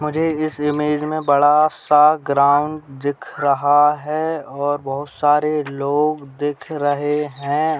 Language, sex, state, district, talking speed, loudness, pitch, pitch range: Hindi, male, Uttar Pradesh, Gorakhpur, 130 wpm, -18 LUFS, 145 Hz, 145-150 Hz